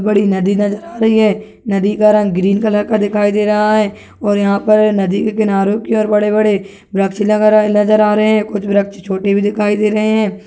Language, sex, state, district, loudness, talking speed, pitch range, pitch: Hindi, female, Rajasthan, Churu, -13 LUFS, 225 wpm, 200-215 Hz, 210 Hz